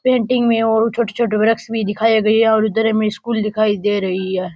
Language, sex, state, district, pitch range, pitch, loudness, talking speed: Rajasthani, male, Rajasthan, Nagaur, 210-225 Hz, 220 Hz, -16 LUFS, 235 wpm